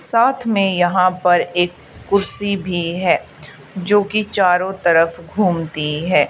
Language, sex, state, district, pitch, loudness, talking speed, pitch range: Hindi, female, Haryana, Charkhi Dadri, 180 Hz, -17 LUFS, 125 wpm, 170-200 Hz